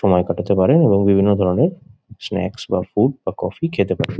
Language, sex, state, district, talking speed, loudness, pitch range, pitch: Bengali, male, West Bengal, Jhargram, 185 wpm, -18 LUFS, 95-135 Hz, 105 Hz